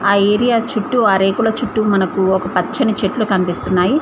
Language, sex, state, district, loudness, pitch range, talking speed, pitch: Telugu, female, Telangana, Mahabubabad, -16 LUFS, 190-220 Hz, 165 wpm, 200 Hz